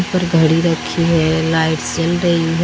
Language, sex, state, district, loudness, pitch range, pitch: Hindi, female, Haryana, Rohtak, -15 LUFS, 160-170 Hz, 165 Hz